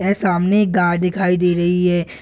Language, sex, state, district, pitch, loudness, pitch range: Hindi, male, Bihar, Purnia, 180 Hz, -17 LUFS, 175-190 Hz